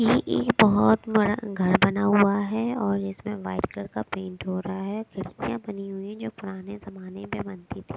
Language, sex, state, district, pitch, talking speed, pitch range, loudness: Hindi, female, Bihar, West Champaran, 200 Hz, 205 wpm, 185-210 Hz, -25 LUFS